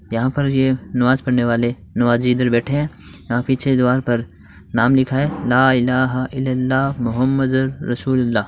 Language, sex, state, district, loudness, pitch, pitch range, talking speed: Hindi, male, Rajasthan, Churu, -18 LUFS, 125 Hz, 120-130 Hz, 170 wpm